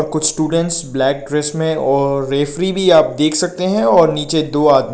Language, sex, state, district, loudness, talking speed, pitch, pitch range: Hindi, male, Nagaland, Kohima, -15 LUFS, 195 wpm, 155 Hz, 140-165 Hz